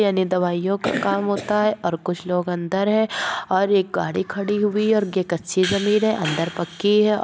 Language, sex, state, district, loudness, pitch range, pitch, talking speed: Hindi, female, Uttar Pradesh, Ghazipur, -21 LUFS, 180-210 Hz, 200 Hz, 225 wpm